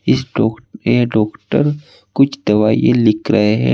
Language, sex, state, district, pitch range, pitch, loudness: Hindi, male, Uttar Pradesh, Saharanpur, 110-130 Hz, 110 Hz, -15 LUFS